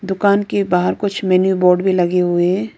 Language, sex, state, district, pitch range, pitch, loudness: Hindi, female, Arunachal Pradesh, Lower Dibang Valley, 180-200 Hz, 190 Hz, -16 LUFS